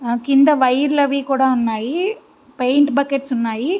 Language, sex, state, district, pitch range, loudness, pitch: Telugu, female, Andhra Pradesh, Visakhapatnam, 250-285 Hz, -17 LUFS, 275 Hz